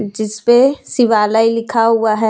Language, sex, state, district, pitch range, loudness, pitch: Hindi, female, Jharkhand, Deoghar, 215-240 Hz, -14 LUFS, 225 Hz